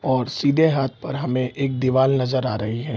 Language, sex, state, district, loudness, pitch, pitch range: Hindi, male, Bihar, Gopalganj, -21 LUFS, 130 Hz, 125-140 Hz